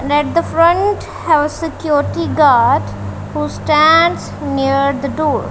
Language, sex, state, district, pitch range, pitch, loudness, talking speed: English, female, Punjab, Kapurthala, 260-325 Hz, 295 Hz, -14 LUFS, 130 wpm